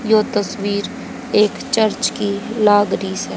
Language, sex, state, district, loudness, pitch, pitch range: Hindi, female, Haryana, Jhajjar, -18 LUFS, 210 Hz, 205-220 Hz